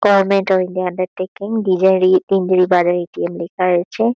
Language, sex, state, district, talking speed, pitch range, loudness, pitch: Bengali, female, West Bengal, Kolkata, 100 wpm, 180-195 Hz, -16 LUFS, 185 Hz